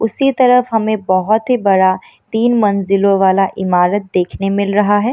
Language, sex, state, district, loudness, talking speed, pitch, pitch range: Hindi, female, Bihar, Samastipur, -14 LUFS, 165 wpm, 205 Hz, 195-225 Hz